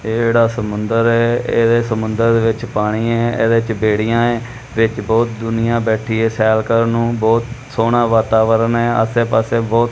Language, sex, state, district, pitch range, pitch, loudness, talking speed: Punjabi, male, Punjab, Kapurthala, 110-115 Hz, 115 Hz, -16 LUFS, 170 wpm